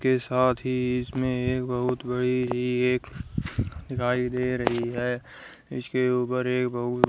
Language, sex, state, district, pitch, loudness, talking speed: Hindi, female, Haryana, Jhajjar, 125 Hz, -27 LUFS, 150 wpm